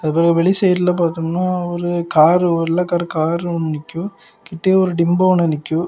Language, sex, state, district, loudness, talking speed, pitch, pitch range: Tamil, male, Tamil Nadu, Kanyakumari, -17 LUFS, 155 wpm, 170 Hz, 165-180 Hz